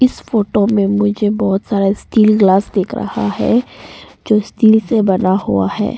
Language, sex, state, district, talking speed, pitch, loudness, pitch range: Hindi, female, Arunachal Pradesh, Papum Pare, 170 wpm, 205 Hz, -14 LUFS, 195-215 Hz